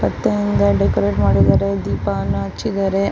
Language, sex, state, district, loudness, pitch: Kannada, female, Karnataka, Chamarajanagar, -17 LUFS, 100 Hz